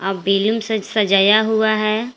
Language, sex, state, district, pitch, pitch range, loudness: Hindi, female, Jharkhand, Garhwa, 215 Hz, 200-220 Hz, -16 LUFS